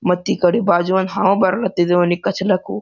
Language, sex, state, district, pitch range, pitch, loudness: Kannada, male, Karnataka, Gulbarga, 175-195 Hz, 185 Hz, -17 LUFS